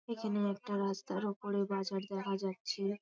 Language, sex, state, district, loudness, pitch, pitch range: Bengali, female, West Bengal, Paschim Medinipur, -37 LUFS, 200 Hz, 195-205 Hz